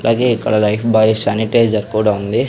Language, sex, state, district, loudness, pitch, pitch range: Telugu, male, Andhra Pradesh, Sri Satya Sai, -15 LUFS, 110 Hz, 105-115 Hz